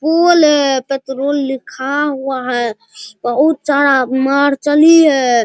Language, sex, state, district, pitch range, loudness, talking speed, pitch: Hindi, male, Bihar, Araria, 265-295 Hz, -13 LUFS, 110 wpm, 280 Hz